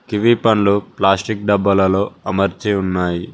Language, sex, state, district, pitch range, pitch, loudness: Telugu, male, Telangana, Mahabubabad, 95-105 Hz, 100 Hz, -16 LUFS